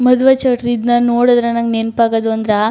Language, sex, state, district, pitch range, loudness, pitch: Kannada, female, Karnataka, Chamarajanagar, 225-245 Hz, -14 LUFS, 235 Hz